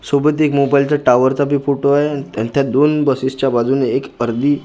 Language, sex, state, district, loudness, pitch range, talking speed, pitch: Marathi, male, Maharashtra, Gondia, -15 LUFS, 130-145 Hz, 195 wpm, 140 Hz